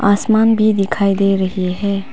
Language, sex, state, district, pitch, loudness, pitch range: Hindi, female, Arunachal Pradesh, Papum Pare, 200 Hz, -15 LUFS, 195-215 Hz